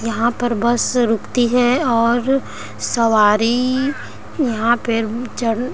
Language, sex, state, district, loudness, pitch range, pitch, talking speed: Hindi, female, Chhattisgarh, Raigarh, -17 LUFS, 230-250 Hz, 235 Hz, 105 wpm